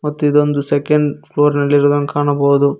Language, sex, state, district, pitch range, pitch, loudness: Kannada, male, Karnataka, Koppal, 145-150 Hz, 145 Hz, -15 LUFS